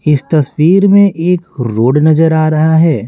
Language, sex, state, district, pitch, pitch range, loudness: Hindi, male, Bihar, Patna, 155 Hz, 150-170 Hz, -10 LUFS